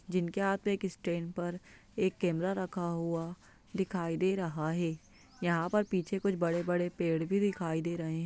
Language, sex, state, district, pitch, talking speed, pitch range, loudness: Hindi, female, Bihar, Lakhisarai, 175 Hz, 180 wpm, 170-195 Hz, -33 LUFS